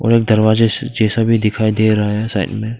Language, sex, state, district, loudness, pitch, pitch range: Hindi, male, Arunachal Pradesh, Papum Pare, -15 LUFS, 110 Hz, 110-115 Hz